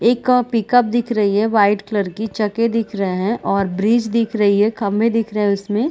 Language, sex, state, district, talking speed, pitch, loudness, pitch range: Hindi, female, Chhattisgarh, Balrampur, 235 wpm, 215 Hz, -17 LUFS, 205-230 Hz